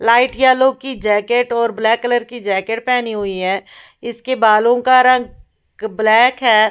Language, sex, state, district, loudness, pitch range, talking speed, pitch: Hindi, female, Bihar, West Champaran, -15 LUFS, 220-250 Hz, 160 wpm, 235 Hz